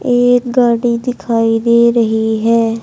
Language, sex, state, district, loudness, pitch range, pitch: Hindi, male, Haryana, Charkhi Dadri, -13 LUFS, 225-245 Hz, 235 Hz